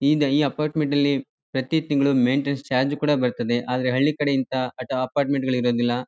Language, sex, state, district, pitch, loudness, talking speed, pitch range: Kannada, male, Karnataka, Chamarajanagar, 135 Hz, -22 LUFS, 160 wpm, 125-145 Hz